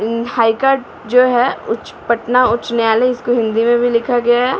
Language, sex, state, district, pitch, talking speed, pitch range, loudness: Hindi, female, Bihar, Patna, 240 Hz, 195 wpm, 230-250 Hz, -15 LUFS